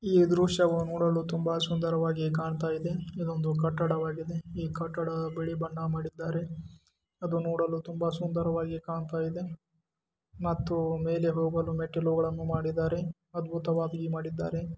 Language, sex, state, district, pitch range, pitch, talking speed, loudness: Kannada, male, Karnataka, Dharwad, 160-170 Hz, 165 Hz, 110 wpm, -31 LUFS